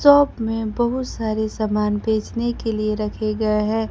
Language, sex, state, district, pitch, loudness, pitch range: Hindi, female, Bihar, Kaimur, 220 Hz, -21 LUFS, 215-235 Hz